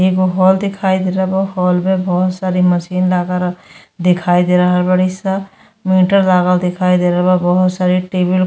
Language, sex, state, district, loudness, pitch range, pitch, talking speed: Bhojpuri, female, Uttar Pradesh, Gorakhpur, -14 LUFS, 180-185 Hz, 185 Hz, 190 wpm